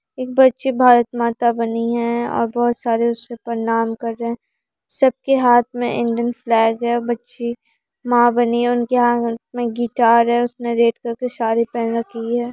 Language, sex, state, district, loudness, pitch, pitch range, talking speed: Hindi, female, Bihar, Araria, -18 LUFS, 235 Hz, 230-240 Hz, 180 wpm